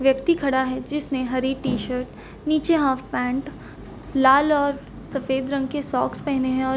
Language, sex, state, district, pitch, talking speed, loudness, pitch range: Hindi, female, Chhattisgarh, Bilaspur, 270 Hz, 170 wpm, -23 LUFS, 260-285 Hz